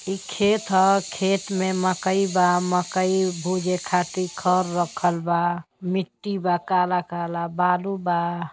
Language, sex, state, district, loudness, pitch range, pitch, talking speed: Bhojpuri, female, Uttar Pradesh, Gorakhpur, -23 LUFS, 175-190 Hz, 180 Hz, 120 wpm